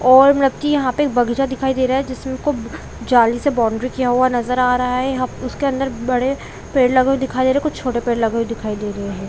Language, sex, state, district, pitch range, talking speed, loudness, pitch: Hindi, female, Chhattisgarh, Rajnandgaon, 240-270 Hz, 270 wpm, -18 LUFS, 255 Hz